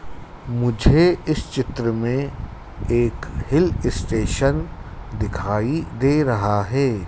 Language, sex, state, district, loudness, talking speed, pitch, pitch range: Hindi, male, Madhya Pradesh, Dhar, -21 LUFS, 95 wpm, 120 Hz, 105-135 Hz